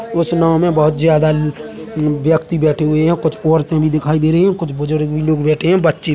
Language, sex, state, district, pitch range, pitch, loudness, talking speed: Hindi, male, Chhattisgarh, Bilaspur, 155-165 Hz, 155 Hz, -15 LUFS, 255 wpm